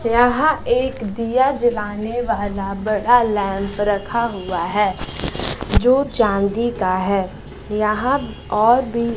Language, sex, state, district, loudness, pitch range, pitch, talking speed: Hindi, female, Bihar, West Champaran, -19 LUFS, 200-240 Hz, 215 Hz, 110 wpm